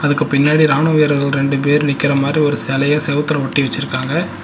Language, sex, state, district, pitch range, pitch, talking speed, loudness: Tamil, male, Tamil Nadu, Nilgiris, 140-150 Hz, 145 Hz, 175 wpm, -15 LUFS